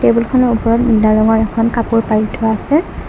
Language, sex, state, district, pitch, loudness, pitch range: Assamese, female, Assam, Kamrup Metropolitan, 225 Hz, -14 LUFS, 220-235 Hz